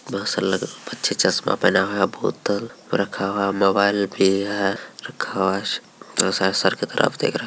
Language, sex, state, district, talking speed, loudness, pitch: Angika, male, Bihar, Begusarai, 225 wpm, -21 LUFS, 100 Hz